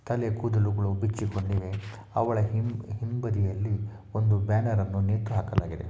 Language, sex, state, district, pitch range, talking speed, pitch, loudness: Kannada, male, Karnataka, Shimoga, 100-110 Hz, 110 wpm, 105 Hz, -28 LUFS